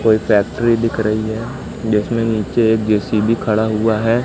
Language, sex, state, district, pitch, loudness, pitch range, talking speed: Hindi, male, Madhya Pradesh, Katni, 110 Hz, -17 LUFS, 110-115 Hz, 170 wpm